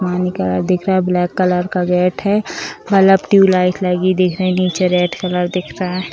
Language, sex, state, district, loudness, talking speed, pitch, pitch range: Hindi, female, Bihar, Purnia, -15 LUFS, 205 wpm, 185 Hz, 180-185 Hz